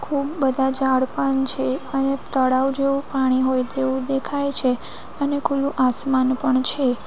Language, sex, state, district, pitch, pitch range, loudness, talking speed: Gujarati, female, Gujarat, Valsad, 265 Hz, 260-275 Hz, -20 LUFS, 145 wpm